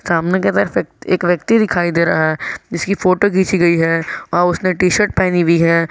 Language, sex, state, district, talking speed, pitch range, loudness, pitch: Hindi, male, Jharkhand, Garhwa, 225 wpm, 170-185 Hz, -15 LUFS, 175 Hz